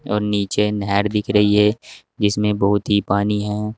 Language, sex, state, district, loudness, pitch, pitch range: Hindi, male, Uttar Pradesh, Saharanpur, -19 LUFS, 105 Hz, 100-105 Hz